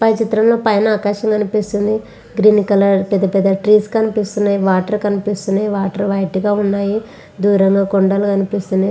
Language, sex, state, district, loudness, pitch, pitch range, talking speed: Telugu, female, Andhra Pradesh, Visakhapatnam, -15 LUFS, 205 Hz, 195-215 Hz, 130 wpm